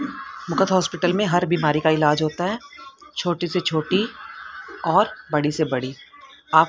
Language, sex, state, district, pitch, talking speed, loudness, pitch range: Hindi, female, Haryana, Rohtak, 175 Hz, 150 wpm, -22 LUFS, 155-215 Hz